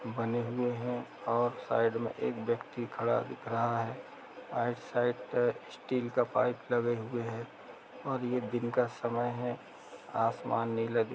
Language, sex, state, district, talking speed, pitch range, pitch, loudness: Hindi, male, Chhattisgarh, Kabirdham, 160 wpm, 115-125 Hz, 120 Hz, -33 LUFS